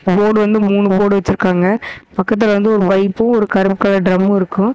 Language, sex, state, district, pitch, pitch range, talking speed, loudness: Tamil, female, Tamil Nadu, Namakkal, 200 Hz, 195-215 Hz, 175 wpm, -14 LUFS